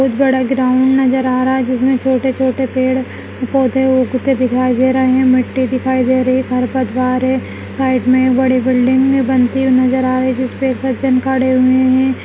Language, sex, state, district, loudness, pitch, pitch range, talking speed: Hindi, female, Bihar, Madhepura, -14 LUFS, 260 Hz, 255-260 Hz, 205 wpm